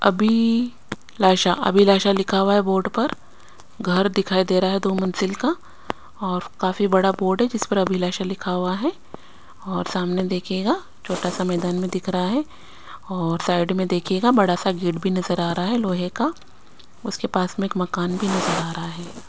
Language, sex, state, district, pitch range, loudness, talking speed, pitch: Hindi, female, Chandigarh, Chandigarh, 180-200 Hz, -21 LUFS, 175 wpm, 190 Hz